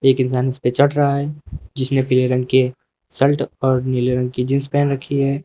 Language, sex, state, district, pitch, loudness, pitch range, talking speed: Hindi, male, Uttar Pradesh, Lucknow, 130 Hz, -18 LUFS, 125-140 Hz, 210 wpm